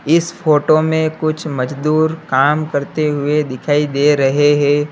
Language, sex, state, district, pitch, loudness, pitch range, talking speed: Hindi, male, Uttar Pradesh, Lalitpur, 150 Hz, -15 LUFS, 145-155 Hz, 145 wpm